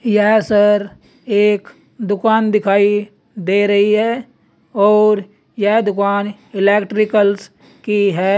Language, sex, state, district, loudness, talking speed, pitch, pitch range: Hindi, male, Uttar Pradesh, Saharanpur, -15 LUFS, 100 wpm, 205 Hz, 200-215 Hz